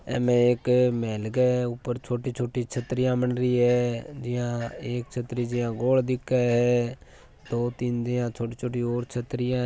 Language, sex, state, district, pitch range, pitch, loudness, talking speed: Marwari, male, Rajasthan, Churu, 120-125 Hz, 120 Hz, -26 LUFS, 155 wpm